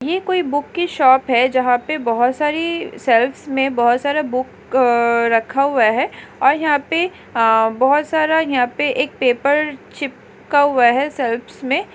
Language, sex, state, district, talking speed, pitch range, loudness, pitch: Hindi, female, Chhattisgarh, Raigarh, 165 wpm, 245-300 Hz, -17 LUFS, 270 Hz